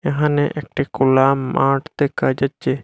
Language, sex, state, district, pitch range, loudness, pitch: Bengali, male, Assam, Hailakandi, 135-145 Hz, -18 LUFS, 140 Hz